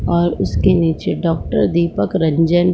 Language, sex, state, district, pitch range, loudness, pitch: Hindi, female, Jharkhand, Sahebganj, 165-175 Hz, -16 LUFS, 170 Hz